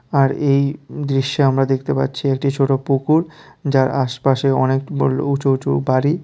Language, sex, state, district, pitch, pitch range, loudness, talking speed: Bengali, male, Tripura, West Tripura, 135 Hz, 135-140 Hz, -18 LUFS, 155 wpm